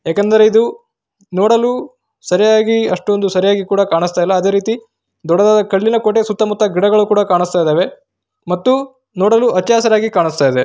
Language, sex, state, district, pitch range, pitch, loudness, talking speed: Kannada, male, Karnataka, Raichur, 185-225 Hz, 210 Hz, -13 LUFS, 135 wpm